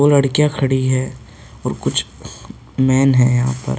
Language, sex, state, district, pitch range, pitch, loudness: Hindi, male, Uttar Pradesh, Hamirpur, 125-135 Hz, 130 Hz, -16 LUFS